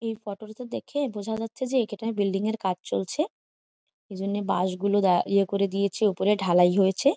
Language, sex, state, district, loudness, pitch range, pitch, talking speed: Bengali, female, West Bengal, Jhargram, -26 LUFS, 190-220 Hz, 200 Hz, 185 wpm